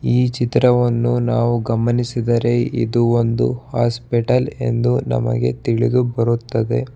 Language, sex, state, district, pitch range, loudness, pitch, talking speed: Kannada, male, Karnataka, Bangalore, 115-120 Hz, -18 LUFS, 120 Hz, 95 wpm